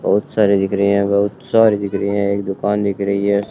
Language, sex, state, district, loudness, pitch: Hindi, male, Rajasthan, Bikaner, -17 LUFS, 100 Hz